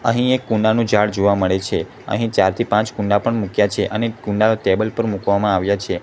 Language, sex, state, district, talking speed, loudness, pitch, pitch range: Gujarati, male, Gujarat, Gandhinagar, 210 wpm, -18 LUFS, 105 Hz, 100-115 Hz